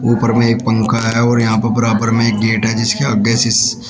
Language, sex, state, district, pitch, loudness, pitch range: Hindi, male, Uttar Pradesh, Shamli, 115 Hz, -14 LUFS, 110-115 Hz